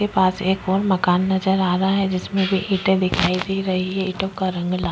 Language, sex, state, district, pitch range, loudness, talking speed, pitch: Hindi, female, Uttar Pradesh, Jyotiba Phule Nagar, 185-195 Hz, -20 LUFS, 255 wpm, 190 Hz